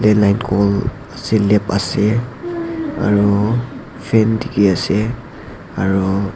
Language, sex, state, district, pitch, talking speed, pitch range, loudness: Nagamese, male, Nagaland, Dimapur, 105 Hz, 85 wpm, 100-120 Hz, -17 LUFS